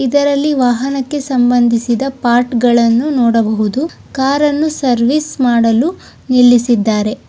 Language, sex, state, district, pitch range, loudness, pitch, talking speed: Kannada, female, Karnataka, Chamarajanagar, 235-280 Hz, -13 LUFS, 250 Hz, 75 wpm